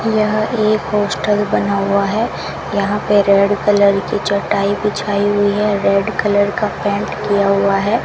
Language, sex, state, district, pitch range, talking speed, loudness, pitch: Hindi, female, Rajasthan, Bikaner, 200-210 Hz, 165 wpm, -16 LUFS, 205 Hz